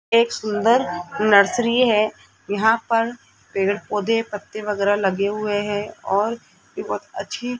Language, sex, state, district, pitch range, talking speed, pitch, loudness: Hindi, female, Rajasthan, Jaipur, 205-230 Hz, 125 wpm, 210 Hz, -21 LUFS